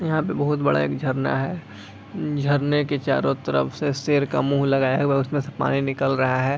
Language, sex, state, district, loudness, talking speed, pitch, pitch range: Hindi, male, Bihar, Sitamarhi, -22 LUFS, 225 wpm, 135 Hz, 130-145 Hz